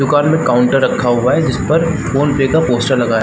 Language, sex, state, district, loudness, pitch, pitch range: Hindi, male, Chhattisgarh, Balrampur, -13 LUFS, 135 Hz, 120-150 Hz